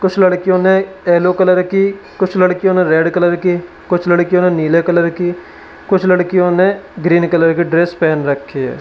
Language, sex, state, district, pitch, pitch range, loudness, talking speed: Hindi, male, Uttar Pradesh, Lalitpur, 180 Hz, 170-185 Hz, -13 LUFS, 190 wpm